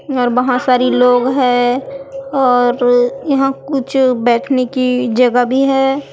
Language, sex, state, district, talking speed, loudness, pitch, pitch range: Hindi, female, Chhattisgarh, Raipur, 125 wpm, -13 LUFS, 255 Hz, 245-270 Hz